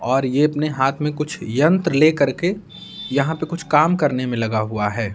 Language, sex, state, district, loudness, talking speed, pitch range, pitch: Hindi, male, Bihar, Patna, -19 LUFS, 210 wpm, 130-160 Hz, 150 Hz